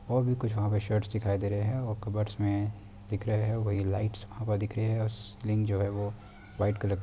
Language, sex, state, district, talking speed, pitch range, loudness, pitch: Hindi, male, Uttar Pradesh, Deoria, 270 wpm, 100-110 Hz, -31 LUFS, 105 Hz